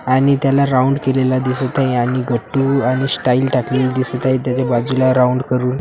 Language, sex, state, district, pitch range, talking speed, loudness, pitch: Marathi, male, Maharashtra, Washim, 125-135 Hz, 185 wpm, -16 LUFS, 130 Hz